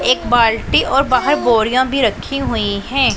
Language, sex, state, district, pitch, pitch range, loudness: Hindi, female, Punjab, Pathankot, 255 Hz, 225-275 Hz, -15 LUFS